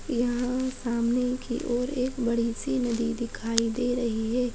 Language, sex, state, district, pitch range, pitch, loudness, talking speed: Chhattisgarhi, female, Chhattisgarh, Sarguja, 235-250 Hz, 240 Hz, -28 LUFS, 160 wpm